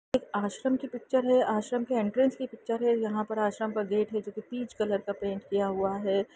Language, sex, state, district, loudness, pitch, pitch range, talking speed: Hindi, female, Bihar, Saran, -30 LUFS, 215 Hz, 205-245 Hz, 235 wpm